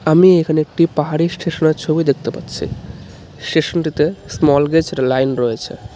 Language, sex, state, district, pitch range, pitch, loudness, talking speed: Bengali, male, West Bengal, Darjeeling, 145-165 Hz, 155 Hz, -16 LUFS, 130 wpm